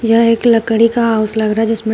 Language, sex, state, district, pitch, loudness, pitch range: Hindi, female, Uttar Pradesh, Shamli, 225 Hz, -13 LUFS, 220-230 Hz